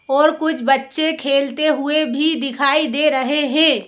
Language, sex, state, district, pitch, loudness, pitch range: Hindi, female, Madhya Pradesh, Bhopal, 290 Hz, -16 LUFS, 275-310 Hz